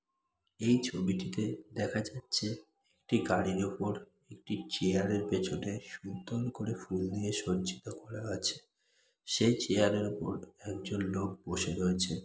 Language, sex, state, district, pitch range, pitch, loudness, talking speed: Bengali, male, West Bengal, Kolkata, 95-110 Hz, 100 Hz, -34 LUFS, 130 wpm